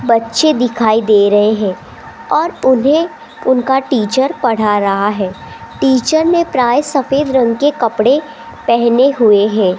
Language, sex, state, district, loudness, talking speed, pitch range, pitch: Hindi, female, Rajasthan, Jaipur, -13 LUFS, 135 wpm, 220-285 Hz, 250 Hz